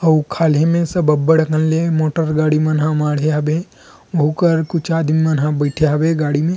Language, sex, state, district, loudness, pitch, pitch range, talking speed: Chhattisgarhi, male, Chhattisgarh, Rajnandgaon, -16 LUFS, 155 Hz, 150-165 Hz, 210 wpm